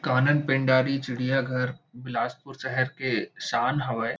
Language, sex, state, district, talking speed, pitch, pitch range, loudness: Chhattisgarhi, male, Chhattisgarh, Bilaspur, 115 wpm, 130 Hz, 125-135 Hz, -26 LUFS